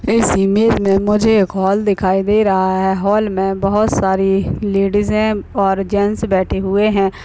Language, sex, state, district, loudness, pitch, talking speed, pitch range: Hindi, female, Bihar, Purnia, -15 LUFS, 200 Hz, 165 wpm, 195-210 Hz